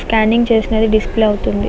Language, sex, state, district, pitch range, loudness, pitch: Telugu, female, Andhra Pradesh, Visakhapatnam, 215-225 Hz, -14 LUFS, 220 Hz